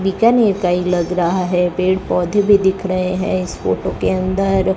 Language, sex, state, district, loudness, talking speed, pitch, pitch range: Hindi, male, Rajasthan, Bikaner, -16 LUFS, 200 wpm, 185 Hz, 180-195 Hz